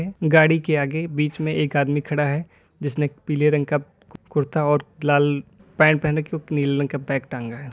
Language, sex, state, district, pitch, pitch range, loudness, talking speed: Hindi, male, Uttar Pradesh, Lalitpur, 150 Hz, 145-155 Hz, -21 LUFS, 215 wpm